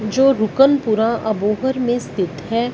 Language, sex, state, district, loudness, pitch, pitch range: Hindi, female, Punjab, Fazilka, -18 LUFS, 230 Hz, 215-260 Hz